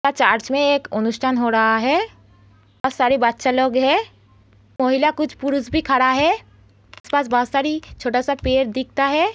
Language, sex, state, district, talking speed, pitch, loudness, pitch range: Hindi, female, Uttar Pradesh, Gorakhpur, 180 wpm, 260 Hz, -19 LUFS, 235-280 Hz